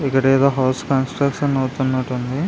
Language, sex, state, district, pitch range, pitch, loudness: Telugu, male, Andhra Pradesh, Visakhapatnam, 130-140 Hz, 135 Hz, -19 LUFS